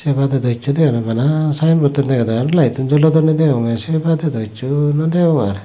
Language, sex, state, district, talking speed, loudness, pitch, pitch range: Chakma, male, Tripura, Dhalai, 190 wpm, -15 LUFS, 145 Hz, 125-155 Hz